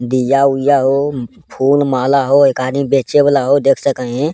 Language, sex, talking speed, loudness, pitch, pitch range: Angika, male, 165 wpm, -13 LUFS, 135 Hz, 130-140 Hz